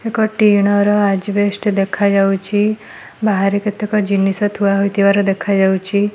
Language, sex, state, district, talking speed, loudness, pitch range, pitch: Odia, female, Odisha, Malkangiri, 105 wpm, -15 LUFS, 195-210 Hz, 200 Hz